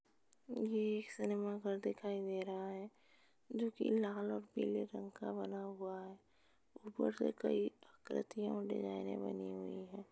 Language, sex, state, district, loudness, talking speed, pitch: Hindi, female, Uttar Pradesh, Etah, -42 LUFS, 155 wpm, 190 Hz